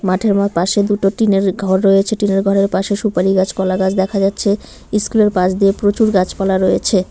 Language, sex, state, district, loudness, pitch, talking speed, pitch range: Bengali, female, West Bengal, Cooch Behar, -15 LUFS, 195 Hz, 195 wpm, 190-205 Hz